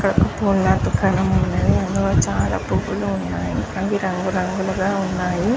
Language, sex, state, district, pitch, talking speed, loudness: Telugu, female, Andhra Pradesh, Chittoor, 180 Hz, 130 wpm, -20 LUFS